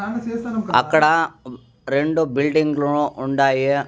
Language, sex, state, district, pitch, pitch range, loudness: Telugu, male, Andhra Pradesh, Sri Satya Sai, 145 Hz, 135-160 Hz, -19 LUFS